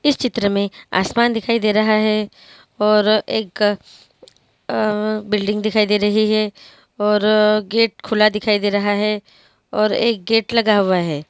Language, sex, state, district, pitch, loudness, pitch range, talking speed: Hindi, female, Maharashtra, Dhule, 215 Hz, -18 LUFS, 205-215 Hz, 155 wpm